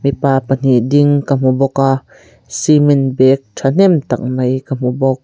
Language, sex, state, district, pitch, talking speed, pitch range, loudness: Mizo, female, Mizoram, Aizawl, 135 Hz, 170 wpm, 130-140 Hz, -13 LUFS